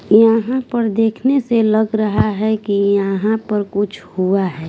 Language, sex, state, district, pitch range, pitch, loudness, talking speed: Hindi, female, Bihar, West Champaran, 200-225 Hz, 215 Hz, -16 LUFS, 165 wpm